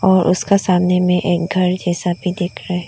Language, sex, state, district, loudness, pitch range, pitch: Hindi, female, Arunachal Pradesh, Lower Dibang Valley, -17 LUFS, 175-185 Hz, 180 Hz